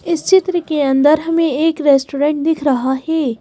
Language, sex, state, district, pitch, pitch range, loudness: Hindi, female, Madhya Pradesh, Bhopal, 300 Hz, 280-325 Hz, -15 LUFS